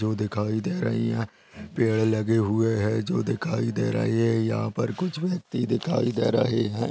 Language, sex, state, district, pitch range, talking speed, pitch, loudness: Hindi, male, Rajasthan, Nagaur, 110-120 Hz, 190 wpm, 115 Hz, -25 LUFS